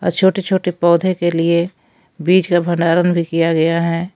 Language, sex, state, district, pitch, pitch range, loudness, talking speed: Hindi, female, Jharkhand, Palamu, 175 Hz, 170-180 Hz, -16 LUFS, 175 wpm